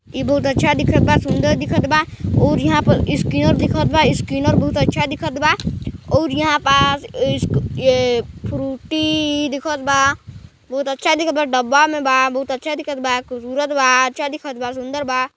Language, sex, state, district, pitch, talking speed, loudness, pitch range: Chhattisgarhi, female, Chhattisgarh, Balrampur, 280 Hz, 170 wpm, -17 LUFS, 260-300 Hz